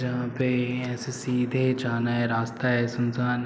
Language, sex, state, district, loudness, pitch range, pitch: Hindi, male, Uttar Pradesh, Muzaffarnagar, -26 LUFS, 120-125 Hz, 125 Hz